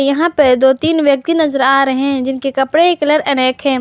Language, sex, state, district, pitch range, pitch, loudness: Hindi, female, Jharkhand, Garhwa, 265-305 Hz, 275 Hz, -13 LUFS